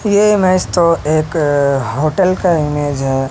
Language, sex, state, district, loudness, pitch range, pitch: Hindi, male, Haryana, Rohtak, -14 LUFS, 145-185 Hz, 155 Hz